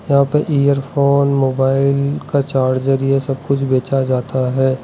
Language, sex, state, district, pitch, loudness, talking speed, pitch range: Hindi, male, Arunachal Pradesh, Lower Dibang Valley, 135 Hz, -16 LUFS, 160 wpm, 130-140 Hz